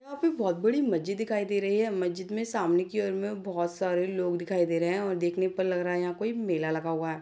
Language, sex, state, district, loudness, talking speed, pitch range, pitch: Hindi, female, Bihar, Purnia, -29 LUFS, 280 wpm, 175-210 Hz, 185 Hz